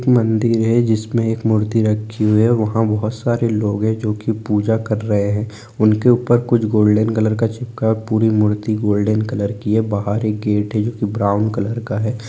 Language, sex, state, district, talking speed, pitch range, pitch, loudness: Hindi, male, Bihar, Gaya, 205 wpm, 105-115 Hz, 110 Hz, -17 LUFS